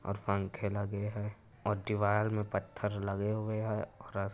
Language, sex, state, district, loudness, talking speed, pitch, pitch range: Hindi, male, Uttar Pradesh, Etah, -35 LUFS, 180 wpm, 105 Hz, 100-105 Hz